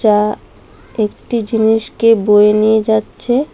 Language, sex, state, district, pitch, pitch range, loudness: Bengali, female, Assam, Hailakandi, 220 Hz, 210-230 Hz, -13 LUFS